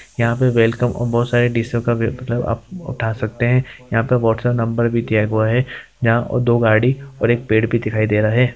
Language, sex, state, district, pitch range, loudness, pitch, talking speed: Hindi, male, Bihar, Jamui, 115-125 Hz, -18 LUFS, 120 Hz, 215 wpm